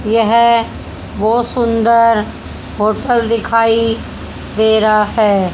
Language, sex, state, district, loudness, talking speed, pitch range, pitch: Hindi, female, Haryana, Jhajjar, -13 LUFS, 85 wpm, 215-230 Hz, 225 Hz